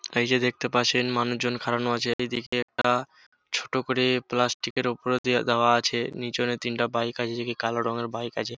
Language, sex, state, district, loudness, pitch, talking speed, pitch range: Bengali, male, West Bengal, Jhargram, -26 LUFS, 120 Hz, 180 wpm, 120-125 Hz